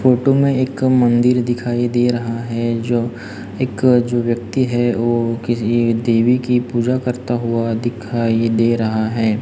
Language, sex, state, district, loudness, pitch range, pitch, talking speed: Hindi, male, Maharashtra, Gondia, -17 LUFS, 115-125 Hz, 120 Hz, 155 wpm